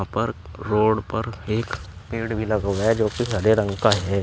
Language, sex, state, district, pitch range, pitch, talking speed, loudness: Hindi, male, Uttar Pradesh, Shamli, 100-110 Hz, 110 Hz, 200 wpm, -23 LUFS